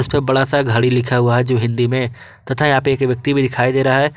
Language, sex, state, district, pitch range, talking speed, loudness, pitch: Hindi, male, Jharkhand, Garhwa, 125-135 Hz, 275 wpm, -16 LUFS, 130 Hz